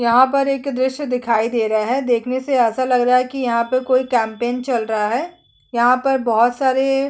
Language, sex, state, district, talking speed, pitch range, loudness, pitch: Hindi, female, Chhattisgarh, Kabirdham, 220 wpm, 235-265 Hz, -18 LUFS, 250 Hz